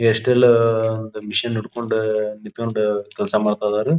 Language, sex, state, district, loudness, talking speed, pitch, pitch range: Kannada, male, Karnataka, Belgaum, -20 LUFS, 90 wpm, 110 Hz, 105-115 Hz